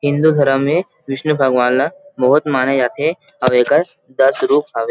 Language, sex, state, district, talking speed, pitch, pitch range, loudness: Chhattisgarhi, male, Chhattisgarh, Rajnandgaon, 185 wpm, 135 Hz, 130-150 Hz, -15 LUFS